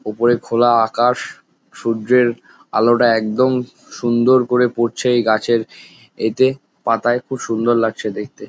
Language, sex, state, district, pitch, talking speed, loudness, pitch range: Bengali, male, West Bengal, Jalpaiguri, 120 Hz, 125 wpm, -17 LUFS, 115-125 Hz